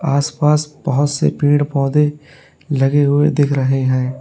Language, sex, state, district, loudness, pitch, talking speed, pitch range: Hindi, male, Uttar Pradesh, Lalitpur, -16 LUFS, 145 Hz, 140 wpm, 135-150 Hz